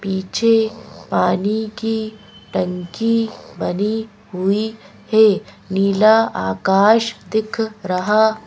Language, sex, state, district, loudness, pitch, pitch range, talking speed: Hindi, female, Madhya Pradesh, Bhopal, -18 LUFS, 215 Hz, 195-220 Hz, 80 wpm